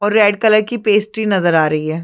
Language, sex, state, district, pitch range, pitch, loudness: Hindi, female, Chhattisgarh, Sarguja, 170-215 Hz, 205 Hz, -14 LUFS